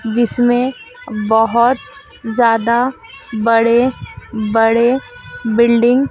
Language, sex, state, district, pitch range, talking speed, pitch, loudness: Hindi, female, Madhya Pradesh, Dhar, 225-250 Hz, 70 wpm, 235 Hz, -14 LUFS